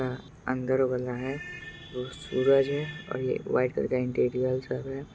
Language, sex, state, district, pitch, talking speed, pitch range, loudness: Hindi, male, Bihar, Purnia, 130 Hz, 165 wpm, 125-140 Hz, -29 LUFS